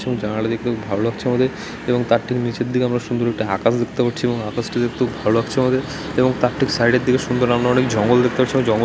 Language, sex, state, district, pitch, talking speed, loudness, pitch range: Bengali, male, West Bengal, Dakshin Dinajpur, 120 Hz, 270 wpm, -19 LUFS, 115-125 Hz